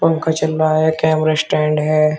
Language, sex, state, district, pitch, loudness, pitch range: Hindi, male, Uttar Pradesh, Shamli, 155 Hz, -16 LUFS, 155-160 Hz